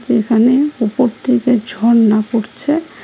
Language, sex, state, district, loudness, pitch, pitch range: Bengali, female, West Bengal, Cooch Behar, -14 LUFS, 235 Hz, 225-255 Hz